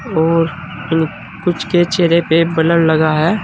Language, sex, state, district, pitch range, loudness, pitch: Hindi, male, Uttar Pradesh, Saharanpur, 160-175 Hz, -14 LUFS, 165 Hz